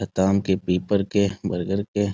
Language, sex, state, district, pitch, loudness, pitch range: Hindi, male, Bihar, Sitamarhi, 100 Hz, -23 LUFS, 95-100 Hz